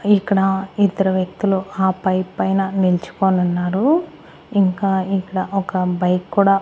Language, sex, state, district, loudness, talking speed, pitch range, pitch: Telugu, female, Andhra Pradesh, Annamaya, -19 LUFS, 120 wpm, 185-195 Hz, 190 Hz